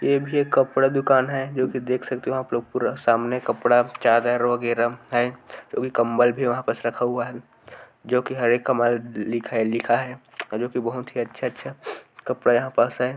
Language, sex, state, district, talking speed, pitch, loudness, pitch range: Hindi, male, Chhattisgarh, Korba, 220 wpm, 120 Hz, -23 LUFS, 120-130 Hz